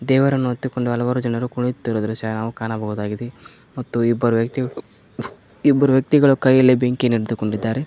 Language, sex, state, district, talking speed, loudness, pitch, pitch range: Kannada, male, Karnataka, Koppal, 115 wpm, -19 LUFS, 120 Hz, 115-130 Hz